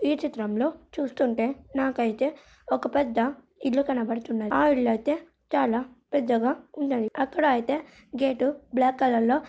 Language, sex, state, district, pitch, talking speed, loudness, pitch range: Telugu, female, Andhra Pradesh, Srikakulam, 270 Hz, 135 wpm, -26 LUFS, 245-285 Hz